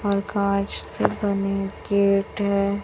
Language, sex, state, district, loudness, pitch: Hindi, female, Chhattisgarh, Raipur, -23 LUFS, 200 Hz